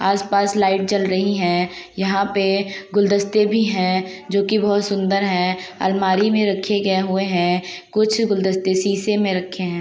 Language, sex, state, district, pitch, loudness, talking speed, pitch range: Hindi, female, Uttar Pradesh, Hamirpur, 195 Hz, -19 LUFS, 165 wpm, 185-200 Hz